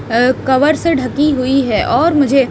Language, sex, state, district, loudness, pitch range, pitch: Hindi, female, Haryana, Rohtak, -13 LUFS, 255-300 Hz, 270 Hz